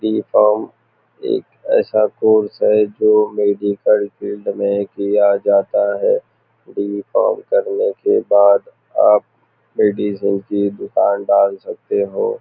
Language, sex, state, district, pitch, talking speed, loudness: Hindi, male, Maharashtra, Nagpur, 105 Hz, 120 wpm, -16 LUFS